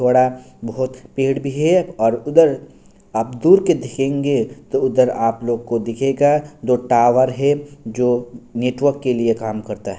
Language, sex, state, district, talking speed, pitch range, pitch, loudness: Hindi, male, Bihar, Kishanganj, 160 wpm, 120-140 Hz, 130 Hz, -18 LUFS